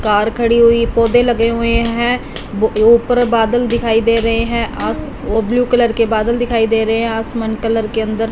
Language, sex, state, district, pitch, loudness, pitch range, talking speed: Hindi, female, Punjab, Fazilka, 230 Hz, -14 LUFS, 225-235 Hz, 200 wpm